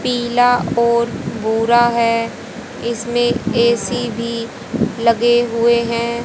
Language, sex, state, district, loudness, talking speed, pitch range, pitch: Hindi, female, Haryana, Jhajjar, -16 LUFS, 95 wpm, 230-240 Hz, 235 Hz